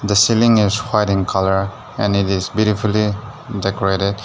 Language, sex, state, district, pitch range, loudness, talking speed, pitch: English, male, Nagaland, Dimapur, 100-110 Hz, -17 LUFS, 155 wpm, 105 Hz